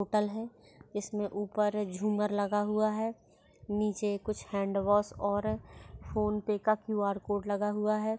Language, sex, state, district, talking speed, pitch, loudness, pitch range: Hindi, female, Maharashtra, Chandrapur, 160 wpm, 210 Hz, -32 LUFS, 205-215 Hz